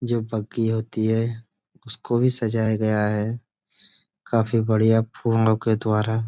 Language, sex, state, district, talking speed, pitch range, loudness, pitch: Hindi, male, Uttar Pradesh, Budaun, 135 wpm, 110-115 Hz, -22 LUFS, 110 Hz